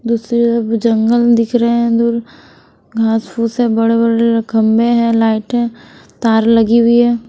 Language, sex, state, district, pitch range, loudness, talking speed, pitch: Hindi, female, Bihar, West Champaran, 225-235 Hz, -13 LUFS, 155 wpm, 230 Hz